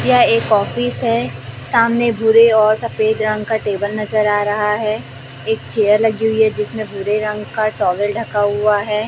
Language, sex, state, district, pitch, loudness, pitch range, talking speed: Hindi, female, Chhattisgarh, Raipur, 215 Hz, -16 LUFS, 205-220 Hz, 185 wpm